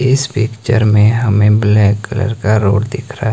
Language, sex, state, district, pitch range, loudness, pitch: Hindi, male, Himachal Pradesh, Shimla, 105-115 Hz, -13 LUFS, 110 Hz